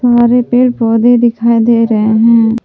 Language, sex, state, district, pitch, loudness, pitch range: Hindi, female, Jharkhand, Palamu, 235 Hz, -9 LUFS, 225-240 Hz